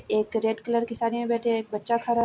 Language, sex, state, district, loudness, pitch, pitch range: Hindi, female, Bihar, Vaishali, -26 LUFS, 230 Hz, 220-235 Hz